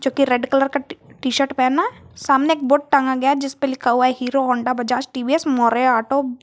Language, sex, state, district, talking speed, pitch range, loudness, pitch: Hindi, female, Jharkhand, Garhwa, 225 wpm, 255-280 Hz, -19 LUFS, 265 Hz